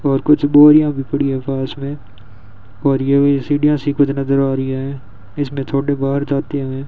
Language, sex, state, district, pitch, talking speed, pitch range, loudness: Hindi, male, Rajasthan, Bikaner, 140 Hz, 200 wpm, 135-145 Hz, -16 LUFS